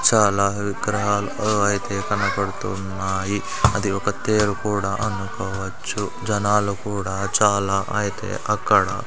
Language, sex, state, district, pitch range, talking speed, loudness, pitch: Telugu, male, Andhra Pradesh, Sri Satya Sai, 100-105 Hz, 105 wpm, -22 LUFS, 100 Hz